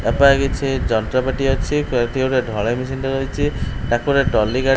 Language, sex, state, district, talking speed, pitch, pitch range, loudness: Odia, male, Odisha, Khordha, 190 wpm, 130 Hz, 120-135 Hz, -19 LUFS